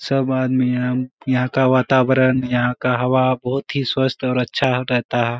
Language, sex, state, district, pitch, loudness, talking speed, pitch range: Hindi, male, Bihar, Kishanganj, 130 Hz, -18 LUFS, 190 wpm, 125-130 Hz